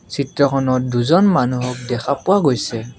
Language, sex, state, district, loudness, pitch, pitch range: Assamese, male, Assam, Kamrup Metropolitan, -17 LUFS, 130 Hz, 125-140 Hz